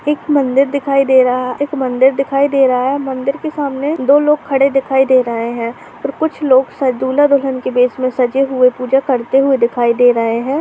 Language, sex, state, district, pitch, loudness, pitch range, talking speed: Hindi, female, Uttar Pradesh, Hamirpur, 265 Hz, -14 LUFS, 255-280 Hz, 230 wpm